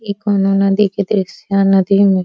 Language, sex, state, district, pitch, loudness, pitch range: Bhojpuri, female, Uttar Pradesh, Deoria, 195 Hz, -14 LUFS, 195-200 Hz